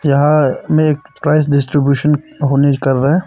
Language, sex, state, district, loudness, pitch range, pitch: Hindi, male, Arunachal Pradesh, Papum Pare, -14 LUFS, 140-150 Hz, 145 Hz